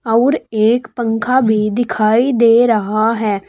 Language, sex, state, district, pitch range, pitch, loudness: Hindi, female, Uttar Pradesh, Saharanpur, 215-240 Hz, 230 Hz, -14 LUFS